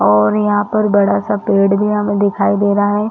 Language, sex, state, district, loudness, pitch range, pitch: Hindi, female, Chhattisgarh, Rajnandgaon, -14 LUFS, 200-210 Hz, 205 Hz